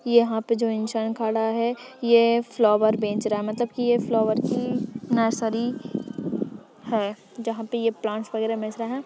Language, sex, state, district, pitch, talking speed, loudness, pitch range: Hindi, female, Chhattisgarh, Sukma, 230 Hz, 170 wpm, -24 LUFS, 220-240 Hz